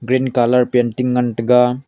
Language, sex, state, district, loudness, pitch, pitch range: Wancho, male, Arunachal Pradesh, Longding, -16 LUFS, 125 Hz, 120-125 Hz